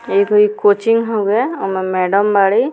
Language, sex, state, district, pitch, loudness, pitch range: Bhojpuri, female, Bihar, Muzaffarpur, 205 Hz, -14 LUFS, 195-220 Hz